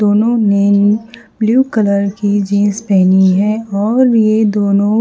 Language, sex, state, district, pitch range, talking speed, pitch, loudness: Hindi, female, Haryana, Charkhi Dadri, 200-220 Hz, 130 wpm, 205 Hz, -12 LUFS